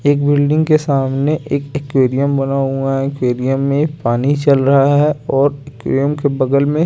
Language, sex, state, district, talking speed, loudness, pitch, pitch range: Hindi, male, Chandigarh, Chandigarh, 185 wpm, -15 LUFS, 140 Hz, 135-145 Hz